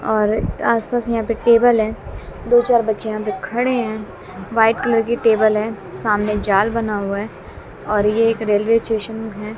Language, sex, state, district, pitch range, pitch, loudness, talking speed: Hindi, female, Bihar, West Champaran, 210-230 Hz, 220 Hz, -18 LUFS, 180 wpm